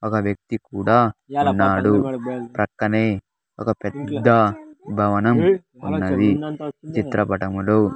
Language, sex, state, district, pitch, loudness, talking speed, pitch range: Telugu, male, Andhra Pradesh, Sri Satya Sai, 110 Hz, -20 LUFS, 75 wpm, 100-125 Hz